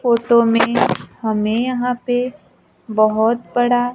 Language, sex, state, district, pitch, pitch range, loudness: Hindi, female, Maharashtra, Gondia, 235 Hz, 225-245 Hz, -17 LUFS